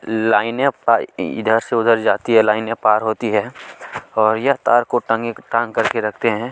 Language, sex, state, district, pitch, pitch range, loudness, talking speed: Hindi, male, Chhattisgarh, Kabirdham, 115 Hz, 110-115 Hz, -17 LUFS, 175 wpm